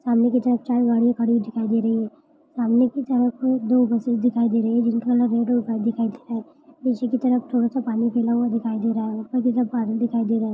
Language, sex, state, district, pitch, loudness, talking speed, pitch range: Hindi, male, Maharashtra, Solapur, 235 Hz, -22 LUFS, 275 wpm, 230-245 Hz